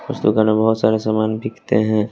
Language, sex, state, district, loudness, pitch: Hindi, male, Bihar, West Champaran, -18 LUFS, 110 Hz